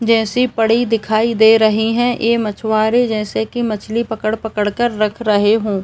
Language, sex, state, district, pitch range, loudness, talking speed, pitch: Hindi, male, Uttar Pradesh, Etah, 215-235 Hz, -16 LUFS, 165 wpm, 220 Hz